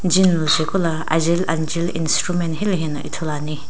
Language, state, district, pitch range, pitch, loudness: Sumi, Nagaland, Dimapur, 160-175 Hz, 165 Hz, -20 LUFS